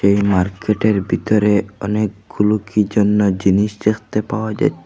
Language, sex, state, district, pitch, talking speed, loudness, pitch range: Bengali, male, Assam, Hailakandi, 105 Hz, 125 wpm, -17 LUFS, 100-105 Hz